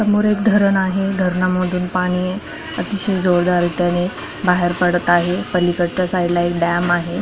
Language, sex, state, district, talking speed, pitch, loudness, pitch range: Marathi, female, Maharashtra, Pune, 150 wpm, 180 Hz, -18 LUFS, 175-190 Hz